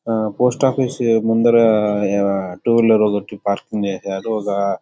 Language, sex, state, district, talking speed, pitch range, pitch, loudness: Telugu, male, Andhra Pradesh, Chittoor, 125 wpm, 100-115 Hz, 105 Hz, -17 LUFS